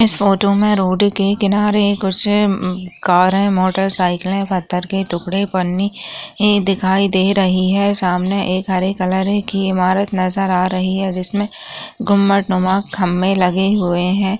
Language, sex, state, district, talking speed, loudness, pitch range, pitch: Hindi, female, Rajasthan, Churu, 140 wpm, -16 LUFS, 185-200 Hz, 195 Hz